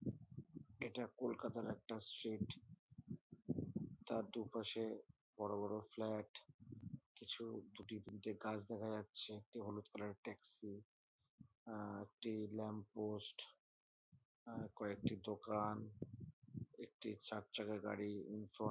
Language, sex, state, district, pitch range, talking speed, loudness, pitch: Bengali, male, West Bengal, North 24 Parganas, 105-115 Hz, 110 wpm, -48 LUFS, 110 Hz